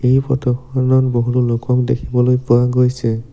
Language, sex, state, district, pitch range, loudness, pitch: Assamese, male, Assam, Sonitpur, 120-130 Hz, -16 LUFS, 125 Hz